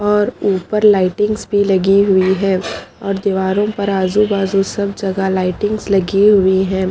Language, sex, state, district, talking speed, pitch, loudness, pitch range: Hindi, female, Haryana, Charkhi Dadri, 150 wpm, 195 Hz, -15 LUFS, 190-205 Hz